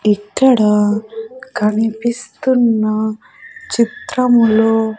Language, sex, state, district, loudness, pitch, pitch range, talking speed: Telugu, female, Andhra Pradesh, Sri Satya Sai, -15 LUFS, 225 Hz, 215-250 Hz, 50 wpm